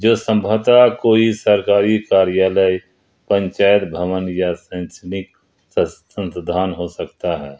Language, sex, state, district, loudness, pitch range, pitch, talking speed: Hindi, male, Jharkhand, Ranchi, -17 LUFS, 90-105 Hz, 95 Hz, 105 wpm